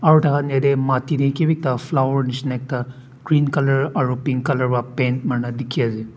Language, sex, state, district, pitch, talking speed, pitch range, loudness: Nagamese, male, Nagaland, Dimapur, 135 Hz, 195 wpm, 125-140 Hz, -20 LUFS